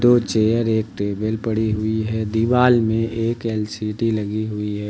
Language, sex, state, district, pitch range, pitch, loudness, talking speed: Hindi, male, Uttar Pradesh, Lucknow, 105-115 Hz, 110 Hz, -20 LUFS, 170 wpm